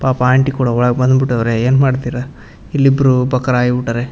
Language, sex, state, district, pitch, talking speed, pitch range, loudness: Kannada, male, Karnataka, Raichur, 125 Hz, 205 wpm, 125-130 Hz, -14 LUFS